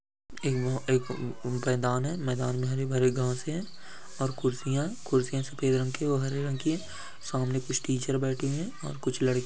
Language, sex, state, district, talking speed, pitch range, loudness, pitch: Hindi, male, West Bengal, Dakshin Dinajpur, 170 wpm, 130-140 Hz, -30 LUFS, 130 Hz